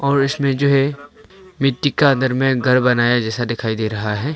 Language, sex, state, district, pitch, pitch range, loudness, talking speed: Hindi, male, Arunachal Pradesh, Longding, 135 Hz, 120-140 Hz, -17 LUFS, 220 wpm